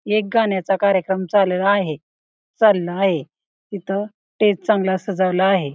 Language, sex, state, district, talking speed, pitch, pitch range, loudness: Marathi, female, Maharashtra, Pune, 125 wpm, 195 Hz, 185-210 Hz, -19 LUFS